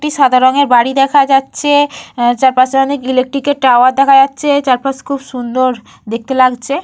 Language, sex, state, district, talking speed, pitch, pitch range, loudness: Bengali, female, Jharkhand, Jamtara, 150 wpm, 270 Hz, 255-280 Hz, -11 LUFS